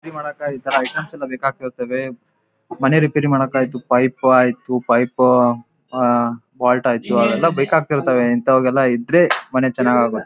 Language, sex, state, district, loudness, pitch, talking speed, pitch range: Kannada, male, Karnataka, Raichur, -17 LUFS, 130 Hz, 140 wpm, 125-135 Hz